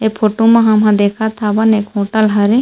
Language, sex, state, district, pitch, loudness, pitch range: Chhattisgarhi, female, Chhattisgarh, Rajnandgaon, 215 Hz, -12 LUFS, 210-220 Hz